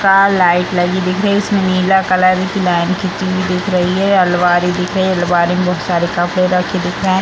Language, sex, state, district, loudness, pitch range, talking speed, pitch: Hindi, female, Bihar, Samastipur, -14 LUFS, 180-190 Hz, 250 wpm, 185 Hz